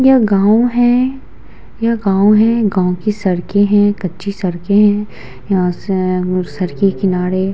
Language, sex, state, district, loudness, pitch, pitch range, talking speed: Hindi, female, Bihar, Vaishali, -14 LUFS, 200 Hz, 185-215 Hz, 150 wpm